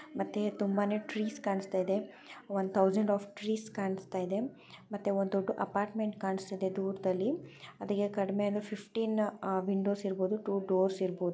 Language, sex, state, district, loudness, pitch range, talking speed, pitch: Kannada, female, Karnataka, Chamarajanagar, -34 LUFS, 195-210 Hz, 135 wpm, 200 Hz